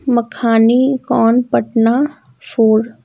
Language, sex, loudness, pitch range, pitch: English, female, -14 LUFS, 225-250 Hz, 235 Hz